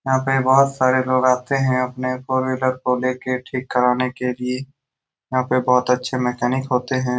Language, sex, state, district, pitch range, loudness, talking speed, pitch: Hindi, male, Bihar, Saran, 125-130 Hz, -20 LUFS, 200 wpm, 130 Hz